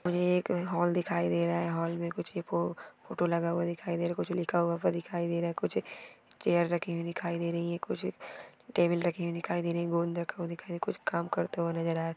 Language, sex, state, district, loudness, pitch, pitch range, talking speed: Hindi, female, Maharashtra, Nagpur, -32 LUFS, 170 Hz, 170-175 Hz, 270 wpm